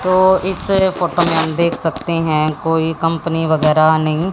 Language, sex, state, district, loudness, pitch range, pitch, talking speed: Hindi, female, Haryana, Jhajjar, -15 LUFS, 160-185 Hz, 165 Hz, 165 wpm